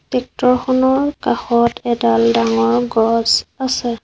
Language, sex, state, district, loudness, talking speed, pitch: Assamese, female, Assam, Sonitpur, -16 LUFS, 90 wpm, 235 Hz